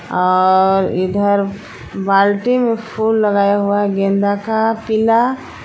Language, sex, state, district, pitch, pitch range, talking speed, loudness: Hindi, female, Jharkhand, Palamu, 205 Hz, 195-220 Hz, 115 wpm, -15 LUFS